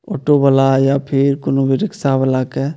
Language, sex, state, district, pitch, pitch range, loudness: Maithili, male, Bihar, Purnia, 135 Hz, 135-140 Hz, -15 LUFS